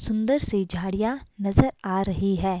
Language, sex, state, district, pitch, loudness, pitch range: Hindi, female, Himachal Pradesh, Shimla, 195 Hz, -25 LUFS, 190-220 Hz